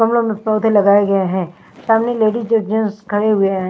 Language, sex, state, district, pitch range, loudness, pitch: Hindi, female, Himachal Pradesh, Shimla, 200-225 Hz, -16 LUFS, 215 Hz